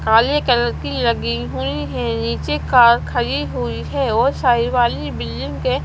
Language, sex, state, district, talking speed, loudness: Hindi, female, Punjab, Kapurthala, 165 wpm, -18 LUFS